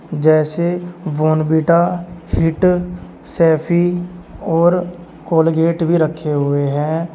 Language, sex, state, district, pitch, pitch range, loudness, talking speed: Hindi, male, Uttar Pradesh, Shamli, 165 Hz, 155-175 Hz, -16 LUFS, 85 wpm